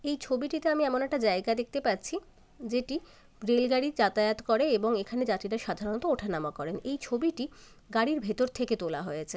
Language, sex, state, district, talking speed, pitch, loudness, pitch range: Bengali, female, West Bengal, Jalpaiguri, 180 wpm, 240 Hz, -30 LUFS, 215-275 Hz